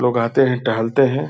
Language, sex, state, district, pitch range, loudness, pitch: Hindi, male, Bihar, Purnia, 115-135 Hz, -18 LUFS, 125 Hz